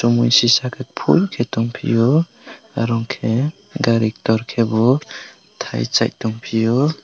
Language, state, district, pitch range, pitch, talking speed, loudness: Kokborok, Tripura, West Tripura, 115-135 Hz, 120 Hz, 135 wpm, -18 LUFS